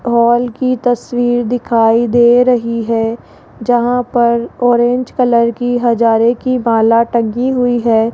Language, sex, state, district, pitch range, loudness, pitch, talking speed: Hindi, female, Rajasthan, Jaipur, 235-245 Hz, -13 LUFS, 240 Hz, 135 wpm